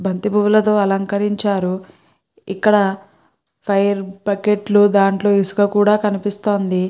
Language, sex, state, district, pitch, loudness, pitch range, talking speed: Telugu, female, Andhra Pradesh, Guntur, 200 Hz, -16 LUFS, 195-205 Hz, 80 wpm